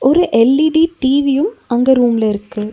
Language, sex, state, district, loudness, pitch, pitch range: Tamil, female, Tamil Nadu, Nilgiris, -14 LUFS, 265 Hz, 235-305 Hz